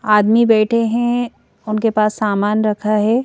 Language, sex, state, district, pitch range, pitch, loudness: Hindi, female, Madhya Pradesh, Bhopal, 210-230 Hz, 215 Hz, -16 LUFS